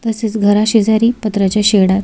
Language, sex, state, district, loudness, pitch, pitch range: Marathi, female, Maharashtra, Solapur, -13 LUFS, 215 Hz, 205-220 Hz